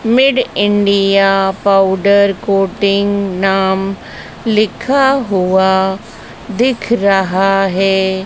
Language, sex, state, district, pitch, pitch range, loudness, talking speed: Hindi, male, Madhya Pradesh, Dhar, 195 Hz, 190-210 Hz, -13 LUFS, 75 wpm